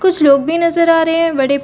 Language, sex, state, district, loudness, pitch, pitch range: Hindi, female, Chhattisgarh, Bastar, -13 LUFS, 330 Hz, 280-335 Hz